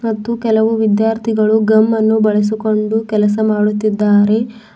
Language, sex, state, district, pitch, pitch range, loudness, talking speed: Kannada, female, Karnataka, Bidar, 220 Hz, 215-220 Hz, -14 LUFS, 90 wpm